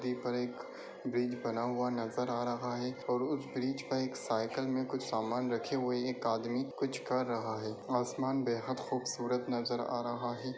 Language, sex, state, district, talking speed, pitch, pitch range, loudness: Hindi, male, Bihar, Darbhanga, 185 wpm, 125 Hz, 120-130 Hz, -36 LUFS